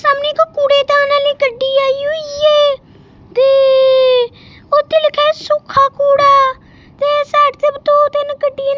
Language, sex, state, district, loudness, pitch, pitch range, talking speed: Punjabi, female, Punjab, Kapurthala, -12 LUFS, 290 Hz, 280-300 Hz, 145 wpm